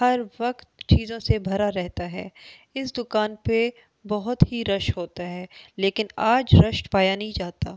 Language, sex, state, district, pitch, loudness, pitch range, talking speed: Hindi, female, Delhi, New Delhi, 215 Hz, -23 LUFS, 195-235 Hz, 160 wpm